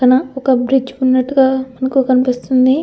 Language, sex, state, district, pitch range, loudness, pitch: Telugu, female, Andhra Pradesh, Anantapur, 255-270 Hz, -14 LUFS, 260 Hz